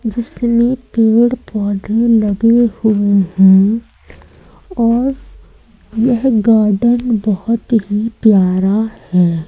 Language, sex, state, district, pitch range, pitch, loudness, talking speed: Hindi, female, Madhya Pradesh, Umaria, 205-235 Hz, 225 Hz, -13 LUFS, 80 wpm